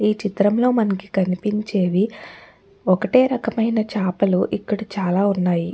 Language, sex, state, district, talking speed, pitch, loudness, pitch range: Telugu, female, Andhra Pradesh, Chittoor, 95 wpm, 200 Hz, -20 LUFS, 185-215 Hz